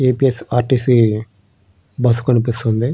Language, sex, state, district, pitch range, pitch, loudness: Telugu, male, Andhra Pradesh, Srikakulam, 110-125 Hz, 120 Hz, -16 LUFS